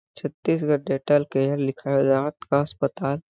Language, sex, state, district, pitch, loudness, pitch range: Hindi, male, Chhattisgarh, Balrampur, 140 Hz, -23 LUFS, 135-145 Hz